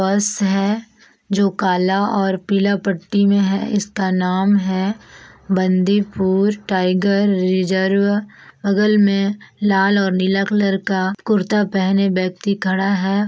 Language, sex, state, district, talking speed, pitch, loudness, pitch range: Hindi, female, Chhattisgarh, Balrampur, 120 wpm, 195 Hz, -18 LUFS, 190-205 Hz